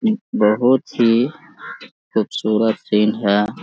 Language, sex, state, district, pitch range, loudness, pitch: Hindi, male, Jharkhand, Sahebganj, 105-130 Hz, -18 LUFS, 110 Hz